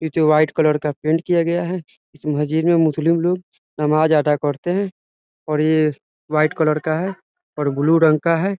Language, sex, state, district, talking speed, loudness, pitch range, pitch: Hindi, male, Bihar, Muzaffarpur, 205 wpm, -19 LUFS, 150-170 Hz, 155 Hz